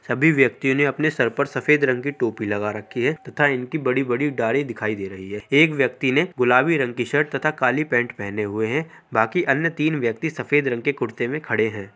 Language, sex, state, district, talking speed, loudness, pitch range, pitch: Hindi, male, Uttar Pradesh, Deoria, 230 wpm, -21 LUFS, 115-150 Hz, 135 Hz